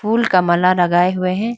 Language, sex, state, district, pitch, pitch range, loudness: Hindi, female, Arunachal Pradesh, Lower Dibang Valley, 185 Hz, 175-215 Hz, -15 LUFS